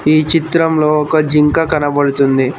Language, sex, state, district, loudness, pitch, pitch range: Telugu, male, Telangana, Mahabubabad, -13 LUFS, 150 Hz, 145-160 Hz